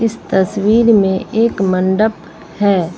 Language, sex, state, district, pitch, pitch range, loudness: Hindi, female, Uttar Pradesh, Lucknow, 200 Hz, 190-220 Hz, -14 LUFS